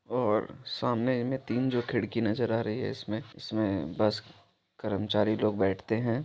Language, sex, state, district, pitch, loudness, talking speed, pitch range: Maithili, male, Bihar, Supaul, 110 Hz, -30 LUFS, 165 wpm, 105-120 Hz